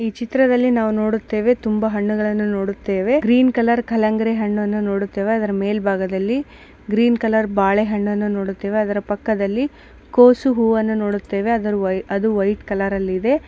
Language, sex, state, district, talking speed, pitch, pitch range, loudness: Kannada, female, Karnataka, Dakshina Kannada, 100 wpm, 215 Hz, 200-230 Hz, -19 LUFS